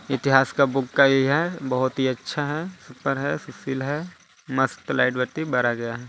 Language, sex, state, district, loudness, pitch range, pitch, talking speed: Hindi, male, Chhattisgarh, Balrampur, -23 LUFS, 130-145 Hz, 135 Hz, 195 wpm